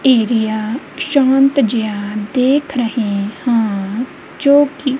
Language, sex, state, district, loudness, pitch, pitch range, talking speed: Punjabi, female, Punjab, Kapurthala, -15 LUFS, 240 Hz, 215-270 Hz, 95 wpm